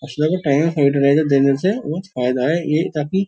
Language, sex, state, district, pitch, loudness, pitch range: Hindi, male, Uttar Pradesh, Jyotiba Phule Nagar, 150 Hz, -18 LUFS, 140-165 Hz